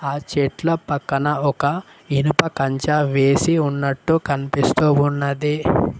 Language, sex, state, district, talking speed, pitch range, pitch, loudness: Telugu, male, Telangana, Mahabubabad, 100 wpm, 140-150 Hz, 145 Hz, -19 LUFS